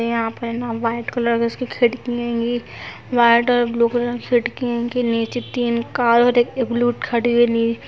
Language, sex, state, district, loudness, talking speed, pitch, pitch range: Hindi, female, Chhattisgarh, Sarguja, -19 LUFS, 190 wpm, 240 Hz, 235-240 Hz